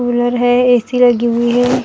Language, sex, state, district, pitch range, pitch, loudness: Hindi, female, Maharashtra, Gondia, 240-245 Hz, 245 Hz, -13 LUFS